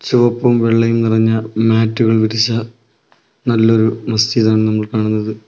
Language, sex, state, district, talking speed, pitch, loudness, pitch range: Malayalam, male, Kerala, Kollam, 110 wpm, 110 Hz, -14 LUFS, 110-115 Hz